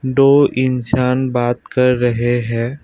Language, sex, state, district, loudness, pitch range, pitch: Hindi, male, Assam, Kamrup Metropolitan, -15 LUFS, 120-130 Hz, 125 Hz